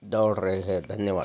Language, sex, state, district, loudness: Hindi, male, Bihar, Gopalganj, -27 LUFS